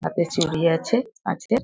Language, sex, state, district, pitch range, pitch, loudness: Bengali, female, West Bengal, Dakshin Dinajpur, 165-235 Hz, 175 Hz, -23 LUFS